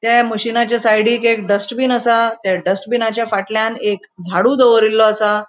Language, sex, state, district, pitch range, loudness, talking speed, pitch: Konkani, female, Goa, North and South Goa, 210-235 Hz, -15 LUFS, 140 wpm, 225 Hz